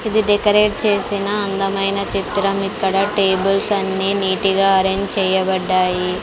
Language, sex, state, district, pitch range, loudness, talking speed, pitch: Telugu, female, Andhra Pradesh, Sri Satya Sai, 190-205 Hz, -17 LUFS, 105 wpm, 195 Hz